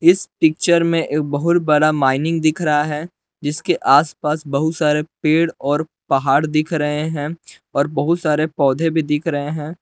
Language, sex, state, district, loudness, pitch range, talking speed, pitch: Hindi, male, Jharkhand, Palamu, -18 LUFS, 150-165 Hz, 170 wpm, 155 Hz